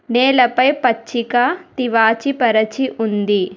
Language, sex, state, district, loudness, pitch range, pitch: Telugu, female, Telangana, Hyderabad, -16 LUFS, 225-260 Hz, 240 Hz